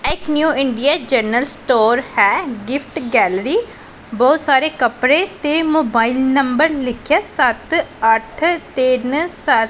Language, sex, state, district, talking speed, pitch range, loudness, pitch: Punjabi, female, Punjab, Pathankot, 135 wpm, 245-315 Hz, -16 LUFS, 275 Hz